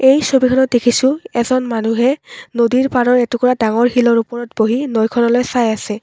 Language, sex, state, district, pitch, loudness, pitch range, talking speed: Assamese, female, Assam, Kamrup Metropolitan, 245 Hz, -15 LUFS, 235-255 Hz, 150 wpm